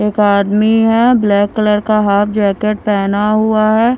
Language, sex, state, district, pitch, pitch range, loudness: Hindi, female, Himachal Pradesh, Shimla, 210 Hz, 205-220 Hz, -12 LUFS